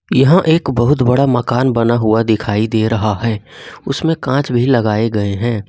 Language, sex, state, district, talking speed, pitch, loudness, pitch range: Hindi, male, Jharkhand, Ranchi, 180 wpm, 120 Hz, -14 LUFS, 110-135 Hz